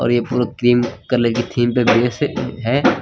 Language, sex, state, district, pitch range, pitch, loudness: Hindi, male, Uttar Pradesh, Lucknow, 120-125 Hz, 120 Hz, -17 LUFS